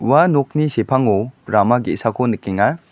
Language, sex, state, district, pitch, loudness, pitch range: Garo, male, Meghalaya, West Garo Hills, 125 Hz, -17 LUFS, 115-145 Hz